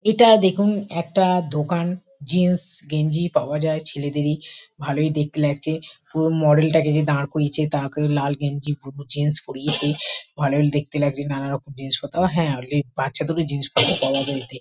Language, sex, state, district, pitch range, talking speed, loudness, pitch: Bengali, female, West Bengal, Kolkata, 145-160 Hz, 150 wpm, -21 LUFS, 150 Hz